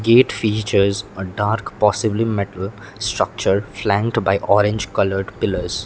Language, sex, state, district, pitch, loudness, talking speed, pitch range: English, male, Sikkim, Gangtok, 100 Hz, -19 LUFS, 125 wpm, 100-110 Hz